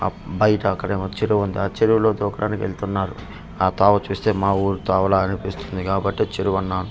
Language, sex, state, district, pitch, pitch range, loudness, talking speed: Telugu, male, Andhra Pradesh, Manyam, 100 Hz, 95-100 Hz, -21 LUFS, 175 wpm